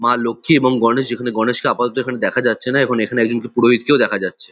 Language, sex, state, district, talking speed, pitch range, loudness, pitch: Bengali, male, West Bengal, Kolkata, 225 wpm, 115-125 Hz, -17 LUFS, 120 Hz